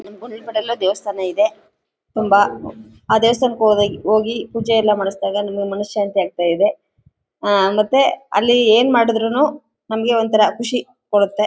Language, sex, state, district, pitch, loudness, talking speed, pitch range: Kannada, female, Karnataka, Chamarajanagar, 215 Hz, -17 LUFS, 115 wpm, 205-235 Hz